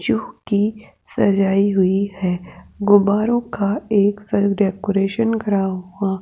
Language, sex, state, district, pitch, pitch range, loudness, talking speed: Hindi, female, Rajasthan, Jaipur, 200 Hz, 195-205 Hz, -19 LUFS, 125 wpm